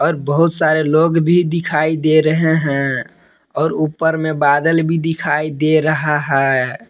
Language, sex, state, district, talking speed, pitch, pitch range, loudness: Hindi, male, Jharkhand, Palamu, 155 wpm, 155 Hz, 150-165 Hz, -15 LUFS